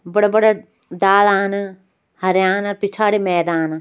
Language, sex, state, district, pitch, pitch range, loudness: Hindi, male, Uttarakhand, Uttarkashi, 195 Hz, 185-205 Hz, -17 LUFS